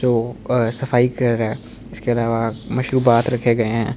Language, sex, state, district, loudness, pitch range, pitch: Hindi, male, Delhi, New Delhi, -19 LUFS, 115-125 Hz, 120 Hz